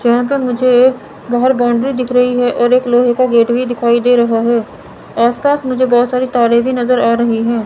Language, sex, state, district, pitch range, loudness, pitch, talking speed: Hindi, female, Chandigarh, Chandigarh, 235-250 Hz, -13 LUFS, 245 Hz, 225 wpm